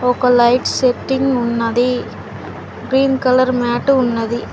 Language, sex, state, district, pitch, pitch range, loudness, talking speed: Telugu, female, Telangana, Mahabubabad, 250 Hz, 240-260 Hz, -15 LUFS, 105 wpm